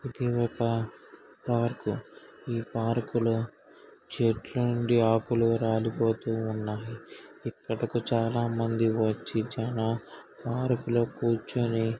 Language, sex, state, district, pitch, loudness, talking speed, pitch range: Telugu, male, Andhra Pradesh, Srikakulam, 115 Hz, -29 LUFS, 100 wpm, 115-120 Hz